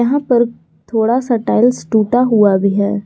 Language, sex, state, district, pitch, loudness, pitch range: Hindi, female, Jharkhand, Garhwa, 225 Hz, -14 LUFS, 200-245 Hz